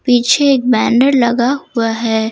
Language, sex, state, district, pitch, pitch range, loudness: Hindi, female, Jharkhand, Ranchi, 245 Hz, 230-265 Hz, -13 LUFS